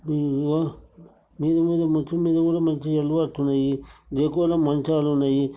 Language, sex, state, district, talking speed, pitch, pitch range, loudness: Telugu, male, Telangana, Nalgonda, 55 wpm, 155 Hz, 145-165 Hz, -23 LUFS